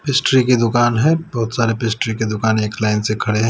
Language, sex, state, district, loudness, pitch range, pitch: Hindi, male, Delhi, New Delhi, -17 LUFS, 110-125 Hz, 115 Hz